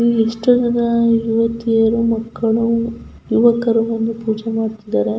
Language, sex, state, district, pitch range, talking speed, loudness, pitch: Kannada, female, Karnataka, Chamarajanagar, 225-230 Hz, 125 wpm, -17 LUFS, 230 Hz